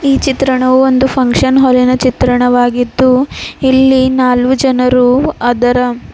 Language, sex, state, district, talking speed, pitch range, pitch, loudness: Kannada, female, Karnataka, Bidar, 100 wpm, 245-265 Hz, 255 Hz, -10 LUFS